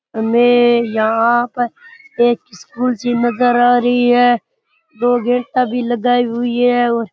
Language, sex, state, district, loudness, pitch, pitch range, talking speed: Rajasthani, male, Rajasthan, Churu, -15 LUFS, 245 Hz, 240-245 Hz, 150 wpm